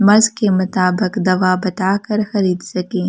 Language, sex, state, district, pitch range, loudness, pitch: Hindi, female, Delhi, New Delhi, 185-205 Hz, -16 LUFS, 190 Hz